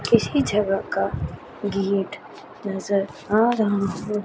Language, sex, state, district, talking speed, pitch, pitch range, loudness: Hindi, female, Chandigarh, Chandigarh, 115 wpm, 205 Hz, 195-215 Hz, -23 LUFS